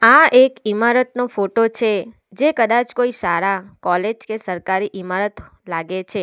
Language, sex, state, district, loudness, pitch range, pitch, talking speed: Gujarati, female, Gujarat, Valsad, -18 LUFS, 190-240 Hz, 215 Hz, 145 wpm